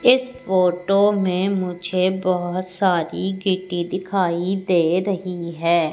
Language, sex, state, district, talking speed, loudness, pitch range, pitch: Hindi, female, Madhya Pradesh, Katni, 110 wpm, -21 LUFS, 175-190 Hz, 185 Hz